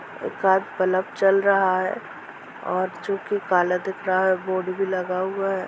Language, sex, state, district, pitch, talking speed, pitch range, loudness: Hindi, female, Jharkhand, Jamtara, 190 Hz, 190 wpm, 185-195 Hz, -23 LUFS